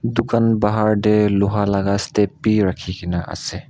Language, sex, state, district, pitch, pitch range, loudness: Nagamese, male, Nagaland, Kohima, 105 Hz, 100-110 Hz, -19 LUFS